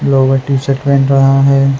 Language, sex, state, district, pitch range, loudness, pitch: Hindi, male, Uttar Pradesh, Hamirpur, 135-140 Hz, -11 LUFS, 135 Hz